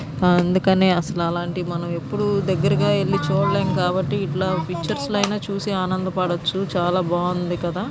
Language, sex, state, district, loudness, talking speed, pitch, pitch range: Telugu, male, Andhra Pradesh, Guntur, -21 LUFS, 120 wpm, 180 Hz, 175-190 Hz